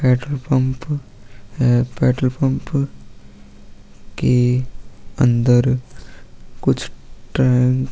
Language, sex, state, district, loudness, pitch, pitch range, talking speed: Hindi, male, Maharashtra, Aurangabad, -18 LUFS, 125 Hz, 125-130 Hz, 70 wpm